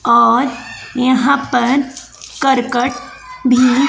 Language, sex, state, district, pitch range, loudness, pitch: Hindi, female, Bihar, West Champaran, 245-270 Hz, -14 LUFS, 255 Hz